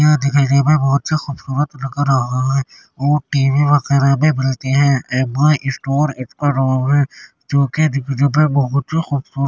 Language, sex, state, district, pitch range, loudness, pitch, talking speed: Hindi, male, Uttar Pradesh, Jyotiba Phule Nagar, 135-145 Hz, -16 LUFS, 140 Hz, 175 wpm